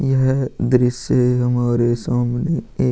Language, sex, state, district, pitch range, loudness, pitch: Hindi, male, Bihar, Vaishali, 120-130 Hz, -18 LUFS, 125 Hz